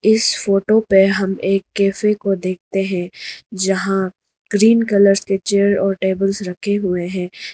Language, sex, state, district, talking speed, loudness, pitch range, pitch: Hindi, female, Arunachal Pradesh, Lower Dibang Valley, 150 wpm, -17 LUFS, 190-200 Hz, 195 Hz